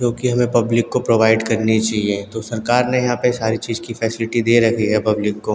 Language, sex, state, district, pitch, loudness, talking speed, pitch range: Hindi, male, Uttarakhand, Tehri Garhwal, 115 Hz, -18 LUFS, 235 wpm, 110-120 Hz